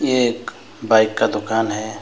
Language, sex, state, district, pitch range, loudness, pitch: Hindi, male, West Bengal, Alipurduar, 110-120 Hz, -18 LUFS, 110 Hz